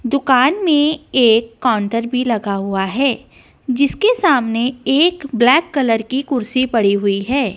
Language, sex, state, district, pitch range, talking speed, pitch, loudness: Hindi, female, Punjab, Kapurthala, 225-275 Hz, 145 wpm, 255 Hz, -16 LUFS